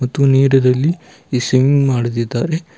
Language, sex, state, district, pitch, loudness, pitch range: Kannada, male, Karnataka, Bidar, 135 Hz, -15 LUFS, 125-150 Hz